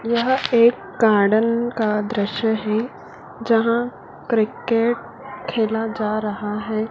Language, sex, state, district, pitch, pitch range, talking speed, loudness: Hindi, female, Madhya Pradesh, Dhar, 225 Hz, 215-235 Hz, 105 wpm, -20 LUFS